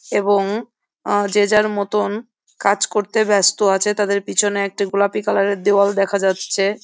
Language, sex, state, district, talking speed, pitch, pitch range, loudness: Bengali, female, West Bengal, Jhargram, 165 wpm, 205 Hz, 200-210 Hz, -18 LUFS